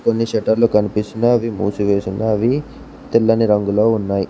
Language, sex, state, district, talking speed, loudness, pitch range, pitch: Telugu, male, Telangana, Mahabubabad, 125 wpm, -17 LUFS, 105-115 Hz, 110 Hz